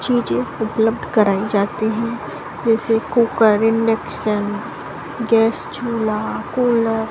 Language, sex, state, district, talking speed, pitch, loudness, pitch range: Hindi, female, Bihar, Saran, 100 wpm, 225 Hz, -18 LUFS, 215-235 Hz